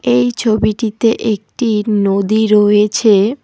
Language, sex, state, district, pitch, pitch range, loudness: Bengali, female, West Bengal, Alipurduar, 215 Hz, 205-220 Hz, -13 LUFS